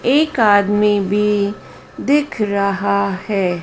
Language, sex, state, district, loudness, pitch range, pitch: Hindi, female, Madhya Pradesh, Dhar, -16 LUFS, 200-215 Hz, 205 Hz